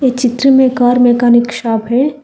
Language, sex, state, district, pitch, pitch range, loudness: Hindi, female, Telangana, Hyderabad, 245 Hz, 240-260 Hz, -11 LUFS